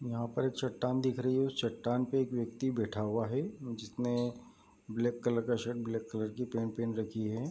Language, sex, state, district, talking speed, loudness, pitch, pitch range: Hindi, male, Bihar, Bhagalpur, 215 wpm, -35 LUFS, 120 Hz, 115-125 Hz